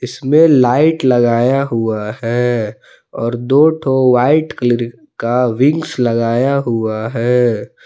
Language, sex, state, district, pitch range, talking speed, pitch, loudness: Hindi, male, Jharkhand, Palamu, 115-140 Hz, 115 wpm, 125 Hz, -14 LUFS